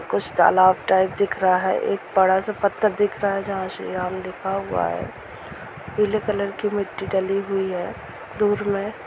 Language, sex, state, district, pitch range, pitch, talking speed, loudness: Hindi, female, Chhattisgarh, Rajnandgaon, 190-205 Hz, 195 Hz, 185 wpm, -22 LUFS